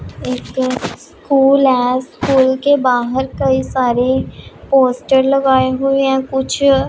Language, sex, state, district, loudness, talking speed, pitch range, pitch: Hindi, female, Punjab, Pathankot, -14 LUFS, 115 wpm, 255-270 Hz, 265 Hz